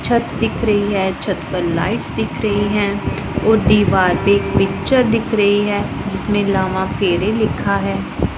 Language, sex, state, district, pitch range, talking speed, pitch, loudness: Hindi, female, Punjab, Pathankot, 190-215 Hz, 165 wpm, 205 Hz, -17 LUFS